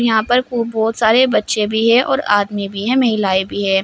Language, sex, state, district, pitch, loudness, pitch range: Hindi, female, Uttar Pradesh, Shamli, 220 Hz, -15 LUFS, 205-240 Hz